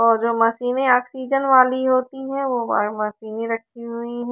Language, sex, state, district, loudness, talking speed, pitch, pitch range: Hindi, female, Haryana, Charkhi Dadri, -20 LUFS, 155 wpm, 245 Hz, 230-260 Hz